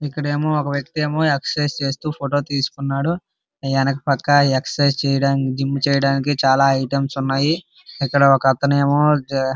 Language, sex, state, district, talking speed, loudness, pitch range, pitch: Telugu, male, Andhra Pradesh, Srikakulam, 140 wpm, -19 LUFS, 135-145 Hz, 140 Hz